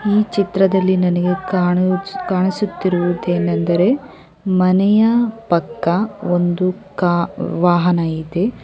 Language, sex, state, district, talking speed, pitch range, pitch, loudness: Kannada, female, Karnataka, Chamarajanagar, 70 wpm, 175-200 Hz, 185 Hz, -17 LUFS